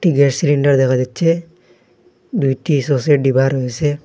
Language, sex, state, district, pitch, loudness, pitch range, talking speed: Bengali, male, Assam, Hailakandi, 140 Hz, -16 LUFS, 130-150 Hz, 120 wpm